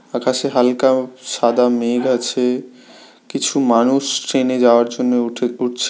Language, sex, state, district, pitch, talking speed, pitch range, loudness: Bengali, male, West Bengal, Paschim Medinipur, 125 Hz, 130 wpm, 120-130 Hz, -17 LUFS